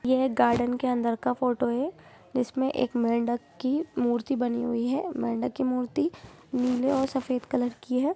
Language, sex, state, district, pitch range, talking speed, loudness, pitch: Hindi, female, Jharkhand, Jamtara, 245-265 Hz, 175 wpm, -27 LUFS, 250 Hz